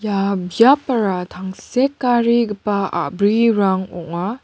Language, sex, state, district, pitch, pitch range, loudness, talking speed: Garo, female, Meghalaya, West Garo Hills, 205 Hz, 190-235 Hz, -18 LUFS, 70 wpm